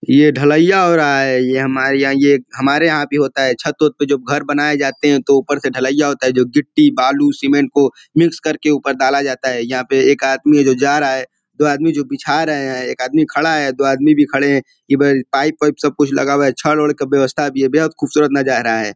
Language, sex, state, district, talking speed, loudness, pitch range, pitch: Hindi, male, Uttar Pradesh, Ghazipur, 255 wpm, -14 LUFS, 135-150 Hz, 140 Hz